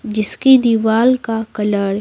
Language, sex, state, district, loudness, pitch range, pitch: Hindi, female, Bihar, Patna, -15 LUFS, 210-240 Hz, 225 Hz